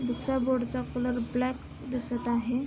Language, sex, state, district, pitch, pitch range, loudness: Marathi, female, Maharashtra, Sindhudurg, 250 Hz, 245-255 Hz, -30 LUFS